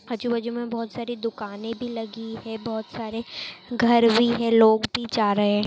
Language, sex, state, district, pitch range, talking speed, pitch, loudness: Hindi, female, Maharashtra, Dhule, 220-235 Hz, 180 wpm, 230 Hz, -24 LUFS